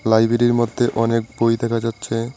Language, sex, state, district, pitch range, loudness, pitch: Bengali, male, West Bengal, Cooch Behar, 115-120 Hz, -19 LUFS, 115 Hz